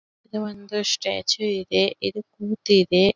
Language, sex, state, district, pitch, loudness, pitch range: Kannada, female, Karnataka, Belgaum, 205 Hz, -23 LUFS, 185-210 Hz